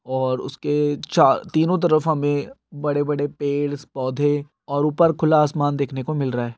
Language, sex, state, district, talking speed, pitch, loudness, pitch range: Hindi, male, Andhra Pradesh, Guntur, 175 wpm, 145 Hz, -21 LUFS, 140-155 Hz